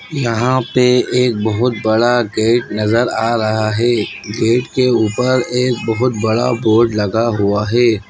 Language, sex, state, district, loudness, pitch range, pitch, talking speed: Hindi, male, Bihar, Bhagalpur, -15 LUFS, 110-125 Hz, 115 Hz, 140 wpm